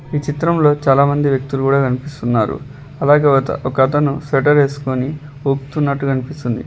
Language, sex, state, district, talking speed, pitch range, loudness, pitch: Telugu, male, Telangana, Hyderabad, 135 wpm, 135-145 Hz, -16 LUFS, 140 Hz